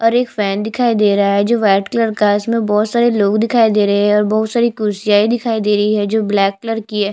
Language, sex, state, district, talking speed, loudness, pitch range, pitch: Hindi, female, Chhattisgarh, Jashpur, 275 wpm, -15 LUFS, 205-230 Hz, 210 Hz